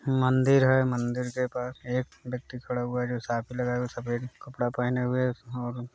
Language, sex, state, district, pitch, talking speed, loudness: Hindi, male, Bihar, Gaya, 125 Hz, 210 wpm, -28 LUFS